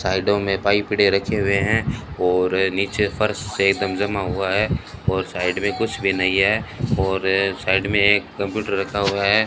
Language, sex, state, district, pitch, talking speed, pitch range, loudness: Hindi, male, Rajasthan, Bikaner, 100 Hz, 190 wpm, 95-105 Hz, -20 LUFS